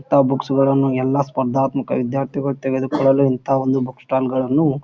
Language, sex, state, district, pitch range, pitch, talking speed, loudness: Kannada, male, Karnataka, Bijapur, 130-135 Hz, 135 Hz, 160 wpm, -19 LUFS